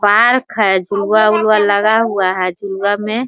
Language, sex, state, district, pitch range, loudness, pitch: Hindi, female, Bihar, Muzaffarpur, 200-215 Hz, -14 LUFS, 205 Hz